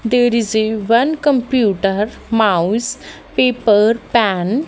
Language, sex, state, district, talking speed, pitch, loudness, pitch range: English, female, Haryana, Jhajjar, 115 wpm, 225 Hz, -15 LUFS, 210-245 Hz